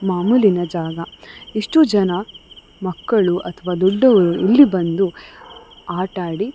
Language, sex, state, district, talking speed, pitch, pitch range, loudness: Kannada, female, Karnataka, Dakshina Kannada, 110 wpm, 185 Hz, 175-210 Hz, -17 LUFS